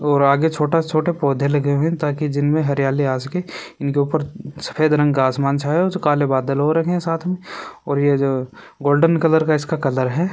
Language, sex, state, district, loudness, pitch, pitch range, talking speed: Hindi, male, Rajasthan, Churu, -19 LUFS, 145 Hz, 140-160 Hz, 230 wpm